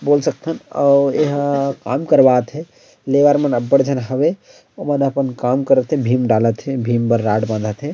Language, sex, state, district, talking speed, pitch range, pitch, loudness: Chhattisgarhi, male, Chhattisgarh, Rajnandgaon, 180 wpm, 120-145 Hz, 135 Hz, -17 LUFS